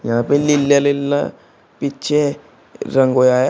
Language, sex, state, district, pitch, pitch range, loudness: Hindi, male, Uttar Pradesh, Shamli, 140 Hz, 130-145 Hz, -16 LUFS